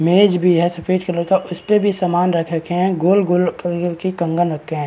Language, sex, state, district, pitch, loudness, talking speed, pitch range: Hindi, male, Uttar Pradesh, Varanasi, 175 Hz, -17 LUFS, 210 wpm, 170-185 Hz